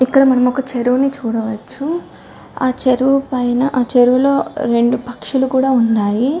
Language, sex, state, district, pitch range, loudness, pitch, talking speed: Telugu, female, Telangana, Karimnagar, 245-270 Hz, -15 LUFS, 255 Hz, 130 wpm